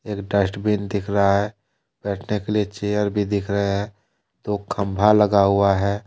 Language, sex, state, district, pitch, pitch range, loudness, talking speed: Hindi, male, Jharkhand, Deoghar, 100 Hz, 100-105 Hz, -21 LUFS, 170 wpm